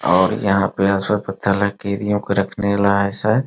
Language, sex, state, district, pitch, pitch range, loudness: Hindi, male, Bihar, Muzaffarpur, 100 Hz, 100-105 Hz, -18 LUFS